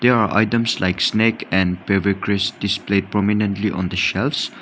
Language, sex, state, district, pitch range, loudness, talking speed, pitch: English, male, Nagaland, Dimapur, 95-110 Hz, -19 LUFS, 145 wpm, 100 Hz